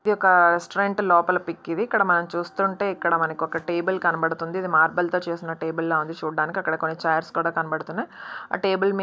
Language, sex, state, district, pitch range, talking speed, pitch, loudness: Telugu, female, Andhra Pradesh, Krishna, 165-190 Hz, 180 wpm, 170 Hz, -23 LUFS